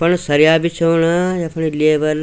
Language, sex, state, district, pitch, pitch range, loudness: Garhwali, male, Uttarakhand, Tehri Garhwal, 165 Hz, 155-170 Hz, -15 LUFS